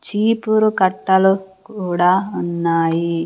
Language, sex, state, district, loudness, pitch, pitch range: Telugu, female, Andhra Pradesh, Sri Satya Sai, -17 LUFS, 190 Hz, 170-205 Hz